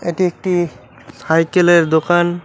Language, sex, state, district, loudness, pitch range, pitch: Bengali, male, West Bengal, Cooch Behar, -15 LUFS, 160-175 Hz, 175 Hz